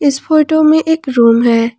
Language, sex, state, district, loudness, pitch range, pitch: Hindi, female, Jharkhand, Ranchi, -11 LUFS, 235-310 Hz, 280 Hz